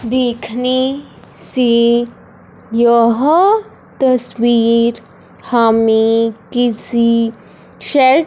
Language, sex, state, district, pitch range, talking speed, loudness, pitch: Hindi, male, Punjab, Fazilka, 230-255 Hz, 50 wpm, -14 LUFS, 235 Hz